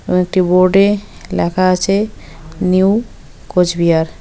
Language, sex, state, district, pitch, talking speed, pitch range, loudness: Bengali, female, West Bengal, Cooch Behar, 185 Hz, 115 wpm, 175-195 Hz, -14 LUFS